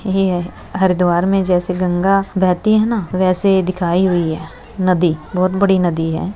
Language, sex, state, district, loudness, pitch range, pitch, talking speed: Hindi, female, Bihar, Begusarai, -16 LUFS, 175-190 Hz, 185 Hz, 160 wpm